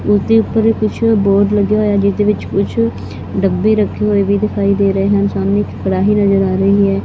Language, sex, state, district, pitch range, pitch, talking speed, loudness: Punjabi, female, Punjab, Fazilka, 195-210 Hz, 200 Hz, 230 wpm, -14 LUFS